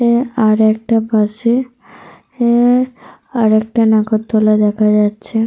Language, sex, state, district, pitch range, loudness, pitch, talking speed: Bengali, female, Jharkhand, Sahebganj, 215-240 Hz, -14 LUFS, 225 Hz, 100 wpm